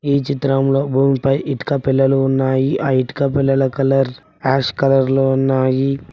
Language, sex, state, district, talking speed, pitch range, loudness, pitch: Telugu, male, Telangana, Mahabubabad, 135 wpm, 135-140 Hz, -16 LUFS, 135 Hz